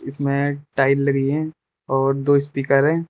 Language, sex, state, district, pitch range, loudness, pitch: Hindi, male, Arunachal Pradesh, Lower Dibang Valley, 135-145 Hz, -19 LUFS, 140 Hz